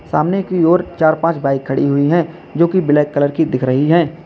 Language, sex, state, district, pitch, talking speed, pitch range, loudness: Hindi, male, Uttar Pradesh, Lalitpur, 160 Hz, 240 wpm, 145-170 Hz, -15 LUFS